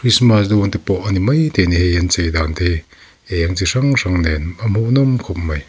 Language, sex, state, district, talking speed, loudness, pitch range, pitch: Mizo, male, Mizoram, Aizawl, 265 wpm, -16 LUFS, 85-115 Hz, 95 Hz